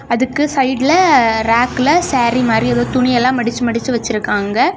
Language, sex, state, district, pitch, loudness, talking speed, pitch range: Tamil, female, Tamil Nadu, Kanyakumari, 245 Hz, -14 LUFS, 140 wpm, 235-260 Hz